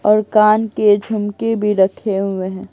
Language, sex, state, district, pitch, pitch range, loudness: Hindi, female, Bihar, Patna, 210 Hz, 195-215 Hz, -16 LUFS